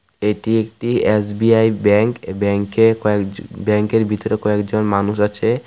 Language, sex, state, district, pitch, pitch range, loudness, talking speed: Bengali, male, Tripura, West Tripura, 105 Hz, 105-110 Hz, -17 LUFS, 170 wpm